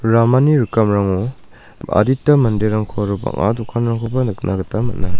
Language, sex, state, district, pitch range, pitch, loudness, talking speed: Garo, male, Meghalaya, North Garo Hills, 100-120 Hz, 115 Hz, -17 LUFS, 115 wpm